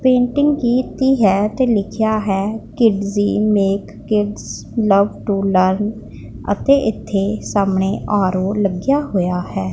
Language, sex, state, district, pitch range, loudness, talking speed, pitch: Punjabi, female, Punjab, Pathankot, 195-225 Hz, -17 LUFS, 115 wpm, 205 Hz